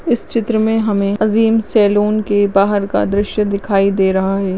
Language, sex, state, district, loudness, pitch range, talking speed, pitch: Hindi, female, Uttarakhand, Uttarkashi, -15 LUFS, 195-215 Hz, 185 wpm, 205 Hz